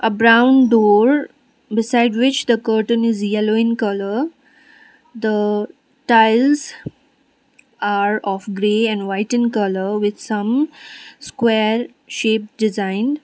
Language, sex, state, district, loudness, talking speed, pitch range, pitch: English, female, Sikkim, Gangtok, -17 LUFS, 115 wpm, 210-265 Hz, 230 Hz